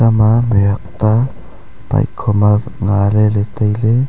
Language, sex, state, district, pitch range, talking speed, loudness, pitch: Wancho, male, Arunachal Pradesh, Longding, 100-115 Hz, 160 wpm, -14 LUFS, 105 Hz